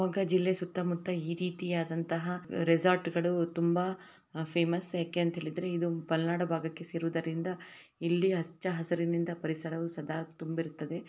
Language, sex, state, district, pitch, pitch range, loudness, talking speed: Kannada, female, Karnataka, Shimoga, 170 Hz, 165-180 Hz, -33 LUFS, 115 wpm